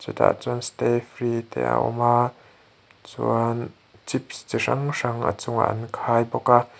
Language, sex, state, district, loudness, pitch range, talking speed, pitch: Mizo, male, Mizoram, Aizawl, -24 LUFS, 110-120 Hz, 165 wpm, 115 Hz